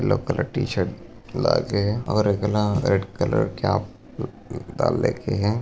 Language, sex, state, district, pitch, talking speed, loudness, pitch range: Hindi, male, Maharashtra, Sindhudurg, 105 Hz, 150 wpm, -24 LUFS, 100-105 Hz